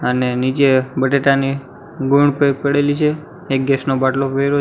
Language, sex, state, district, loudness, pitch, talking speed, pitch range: Gujarati, male, Gujarat, Gandhinagar, -16 LUFS, 135 Hz, 145 wpm, 135-145 Hz